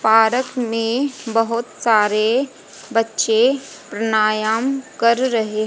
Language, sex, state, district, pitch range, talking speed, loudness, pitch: Hindi, female, Haryana, Jhajjar, 220-250 Hz, 85 wpm, -18 LUFS, 225 Hz